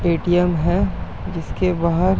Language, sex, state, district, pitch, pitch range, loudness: Hindi, male, Uttar Pradesh, Etah, 175 Hz, 170-185 Hz, -20 LUFS